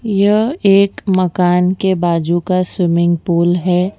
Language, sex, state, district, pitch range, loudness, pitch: Hindi, female, Gujarat, Valsad, 175-195 Hz, -14 LUFS, 180 Hz